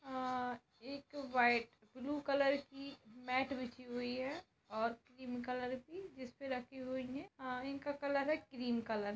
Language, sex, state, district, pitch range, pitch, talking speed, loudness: Hindi, female, Bihar, East Champaran, 245-275 Hz, 255 Hz, 170 wpm, -41 LUFS